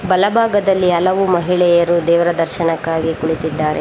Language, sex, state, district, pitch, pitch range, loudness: Kannada, female, Karnataka, Bangalore, 175 Hz, 165-185 Hz, -15 LUFS